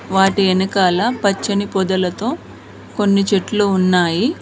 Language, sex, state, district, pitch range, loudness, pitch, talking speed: Telugu, female, Telangana, Mahabubabad, 185-205 Hz, -16 LUFS, 195 Hz, 95 wpm